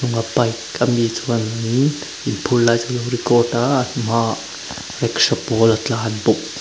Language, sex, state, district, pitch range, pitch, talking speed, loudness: Mizo, male, Mizoram, Aizawl, 115-125 Hz, 115 Hz, 170 wpm, -19 LUFS